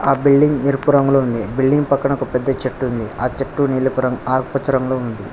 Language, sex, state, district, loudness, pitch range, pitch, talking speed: Telugu, male, Telangana, Hyderabad, -17 LUFS, 130-140 Hz, 135 Hz, 200 wpm